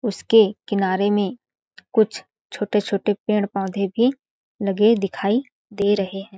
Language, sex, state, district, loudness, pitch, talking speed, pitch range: Hindi, female, Chhattisgarh, Balrampur, -21 LUFS, 205 Hz, 120 wpm, 195-220 Hz